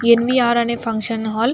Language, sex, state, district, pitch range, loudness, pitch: Telugu, female, Andhra Pradesh, Anantapur, 225-235 Hz, -18 LUFS, 235 Hz